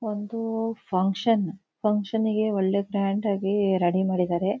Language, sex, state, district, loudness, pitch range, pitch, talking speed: Kannada, female, Karnataka, Shimoga, -25 LUFS, 190-215 Hz, 200 Hz, 115 wpm